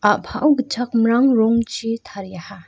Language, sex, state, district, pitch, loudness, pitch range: Garo, female, Meghalaya, North Garo Hills, 230 Hz, -18 LUFS, 205-245 Hz